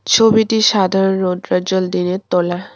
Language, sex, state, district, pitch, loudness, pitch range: Bengali, female, West Bengal, Cooch Behar, 190 Hz, -15 LUFS, 180-210 Hz